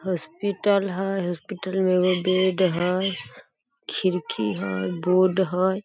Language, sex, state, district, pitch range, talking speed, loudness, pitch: Maithili, female, Bihar, Samastipur, 180-190 Hz, 125 wpm, -24 LUFS, 185 Hz